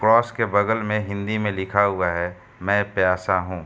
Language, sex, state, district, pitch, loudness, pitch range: Hindi, male, Uttar Pradesh, Hamirpur, 100 Hz, -22 LUFS, 95-105 Hz